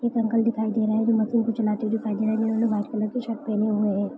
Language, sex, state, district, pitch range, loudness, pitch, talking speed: Hindi, female, Maharashtra, Nagpur, 215-230 Hz, -24 LUFS, 220 Hz, 330 wpm